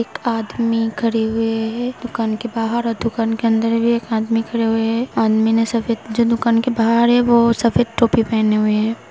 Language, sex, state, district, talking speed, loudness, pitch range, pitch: Hindi, female, Uttar Pradesh, Hamirpur, 210 wpm, -18 LUFS, 225-235 Hz, 230 Hz